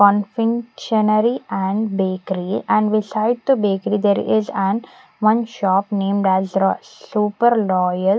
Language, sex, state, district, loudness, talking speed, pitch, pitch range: English, female, Punjab, Pathankot, -19 LUFS, 130 wpm, 205 Hz, 195-225 Hz